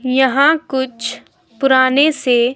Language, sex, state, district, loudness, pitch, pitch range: Hindi, female, Himachal Pradesh, Shimla, -15 LUFS, 260 Hz, 250-280 Hz